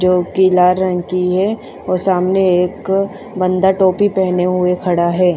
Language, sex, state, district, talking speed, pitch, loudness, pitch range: Hindi, female, Haryana, Charkhi Dadri, 155 wpm, 185 Hz, -15 LUFS, 180-190 Hz